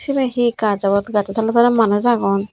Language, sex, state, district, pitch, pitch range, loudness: Chakma, female, Tripura, Unakoti, 225 Hz, 200-240 Hz, -17 LUFS